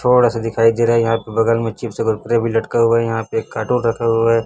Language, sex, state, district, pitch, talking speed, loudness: Hindi, male, Chhattisgarh, Raipur, 115 Hz, 325 wpm, -17 LUFS